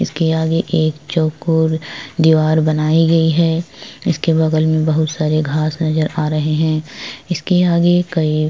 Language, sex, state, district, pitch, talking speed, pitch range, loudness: Hindi, female, Chhattisgarh, Korba, 160 Hz, 150 wpm, 155-165 Hz, -16 LUFS